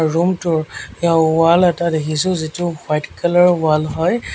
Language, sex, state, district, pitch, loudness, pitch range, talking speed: Assamese, male, Assam, Sonitpur, 165 Hz, -16 LUFS, 155-175 Hz, 165 wpm